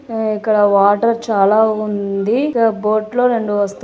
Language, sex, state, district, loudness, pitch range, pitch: Telugu, female, Andhra Pradesh, Anantapur, -15 LUFS, 205-230 Hz, 215 Hz